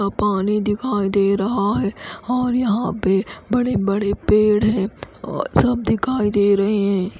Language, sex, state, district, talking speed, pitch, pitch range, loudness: Hindi, female, Odisha, Khordha, 150 wpm, 210 Hz, 200-225 Hz, -19 LUFS